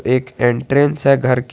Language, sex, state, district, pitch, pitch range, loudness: Hindi, male, Jharkhand, Garhwa, 130 Hz, 125-140 Hz, -16 LUFS